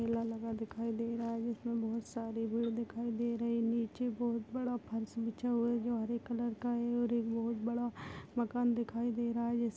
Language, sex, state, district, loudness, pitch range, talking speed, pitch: Hindi, female, Maharashtra, Aurangabad, -37 LUFS, 230-235 Hz, 220 wpm, 235 Hz